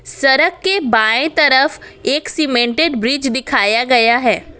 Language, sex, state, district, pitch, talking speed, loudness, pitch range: Hindi, female, Assam, Kamrup Metropolitan, 260 Hz, 130 wpm, -14 LUFS, 240-310 Hz